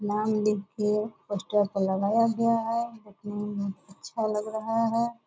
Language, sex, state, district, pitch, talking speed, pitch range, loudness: Hindi, female, Bihar, Purnia, 210 Hz, 170 wpm, 205-225 Hz, -28 LUFS